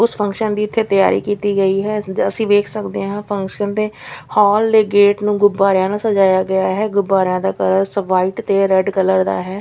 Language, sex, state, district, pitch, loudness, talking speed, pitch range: Punjabi, female, Chandigarh, Chandigarh, 200 Hz, -16 LUFS, 205 wpm, 190-210 Hz